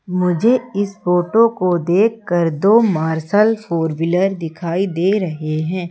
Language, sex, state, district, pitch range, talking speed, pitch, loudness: Hindi, female, Madhya Pradesh, Umaria, 165-205 Hz, 130 wpm, 180 Hz, -17 LUFS